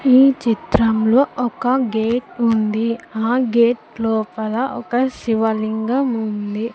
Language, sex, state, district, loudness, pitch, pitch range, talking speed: Telugu, female, Andhra Pradesh, Sri Satya Sai, -18 LUFS, 230 Hz, 220-250 Hz, 100 wpm